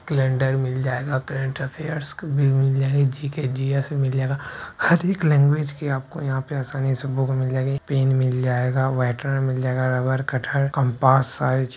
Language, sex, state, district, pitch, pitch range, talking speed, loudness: Hindi, male, Bihar, Purnia, 135 Hz, 130-140 Hz, 155 wpm, -22 LUFS